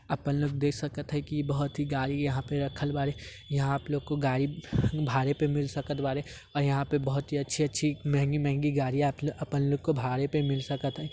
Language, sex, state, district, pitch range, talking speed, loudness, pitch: Hindi, male, Bihar, Muzaffarpur, 140-145 Hz, 215 wpm, -30 LUFS, 145 Hz